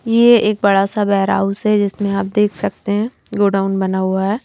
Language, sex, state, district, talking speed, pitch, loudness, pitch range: Hindi, female, Madhya Pradesh, Bhopal, 200 wpm, 200 Hz, -16 LUFS, 195-215 Hz